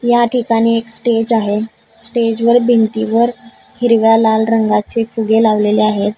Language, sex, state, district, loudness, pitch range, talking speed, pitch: Marathi, female, Maharashtra, Gondia, -13 LUFS, 220-235 Hz, 125 wpm, 225 Hz